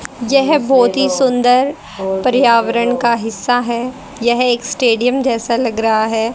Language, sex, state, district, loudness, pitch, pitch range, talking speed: Hindi, female, Haryana, Charkhi Dadri, -14 LUFS, 245 Hz, 230-255 Hz, 140 wpm